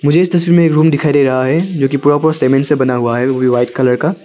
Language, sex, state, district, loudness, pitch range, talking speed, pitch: Hindi, male, Arunachal Pradesh, Longding, -12 LUFS, 130-160 Hz, 355 wpm, 145 Hz